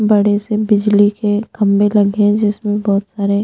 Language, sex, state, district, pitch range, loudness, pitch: Hindi, female, Chhattisgarh, Bastar, 205-210 Hz, -14 LUFS, 205 Hz